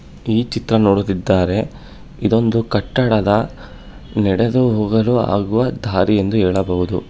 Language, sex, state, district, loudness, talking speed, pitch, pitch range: Kannada, male, Karnataka, Bangalore, -17 LUFS, 95 wpm, 105 Hz, 100-115 Hz